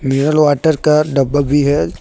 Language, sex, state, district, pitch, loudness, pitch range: Hindi, male, Jharkhand, Deoghar, 145 Hz, -13 LUFS, 135-150 Hz